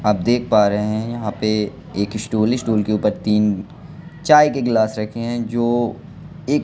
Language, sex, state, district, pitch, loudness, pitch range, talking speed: Hindi, male, Madhya Pradesh, Katni, 110 Hz, -19 LUFS, 105-120 Hz, 190 wpm